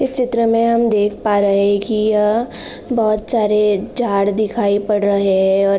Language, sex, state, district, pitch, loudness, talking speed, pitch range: Hindi, female, Uttar Pradesh, Jalaun, 210 Hz, -16 LUFS, 195 wpm, 200-230 Hz